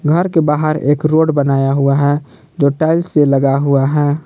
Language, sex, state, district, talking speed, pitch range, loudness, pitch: Hindi, male, Jharkhand, Palamu, 200 wpm, 140-155 Hz, -14 LUFS, 145 Hz